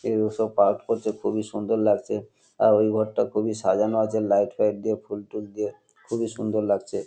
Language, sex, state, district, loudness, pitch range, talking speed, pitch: Bengali, male, West Bengal, North 24 Parganas, -24 LUFS, 105-110 Hz, 185 wpm, 110 Hz